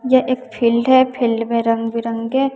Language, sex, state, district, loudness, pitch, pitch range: Hindi, female, Bihar, West Champaran, -17 LUFS, 235 Hz, 230-260 Hz